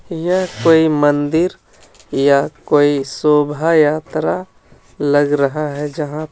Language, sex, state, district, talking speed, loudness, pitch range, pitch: Hindi, male, Jharkhand, Ranchi, 125 wpm, -16 LUFS, 145-160 Hz, 150 Hz